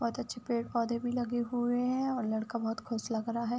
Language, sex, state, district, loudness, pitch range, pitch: Hindi, female, Uttar Pradesh, Budaun, -33 LUFS, 230-245 Hz, 235 Hz